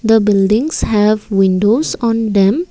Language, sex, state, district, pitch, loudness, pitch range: English, female, Assam, Kamrup Metropolitan, 215 Hz, -13 LUFS, 200-230 Hz